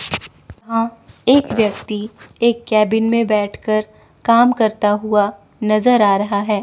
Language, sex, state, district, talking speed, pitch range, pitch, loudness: Hindi, female, Chandigarh, Chandigarh, 125 wpm, 210-230 Hz, 215 Hz, -17 LUFS